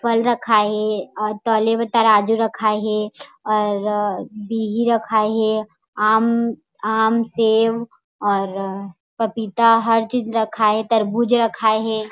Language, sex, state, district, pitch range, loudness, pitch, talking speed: Chhattisgarhi, female, Chhattisgarh, Raigarh, 215-230 Hz, -19 LUFS, 220 Hz, 120 wpm